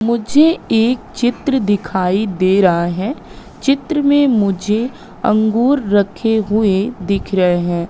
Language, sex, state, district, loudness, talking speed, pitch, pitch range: Hindi, female, Madhya Pradesh, Katni, -15 LUFS, 120 wpm, 215 Hz, 190-250 Hz